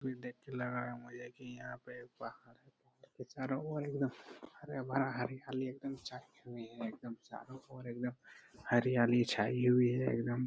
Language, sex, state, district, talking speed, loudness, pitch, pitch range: Hindi, male, Bihar, Araria, 130 wpm, -38 LUFS, 125 Hz, 120-130 Hz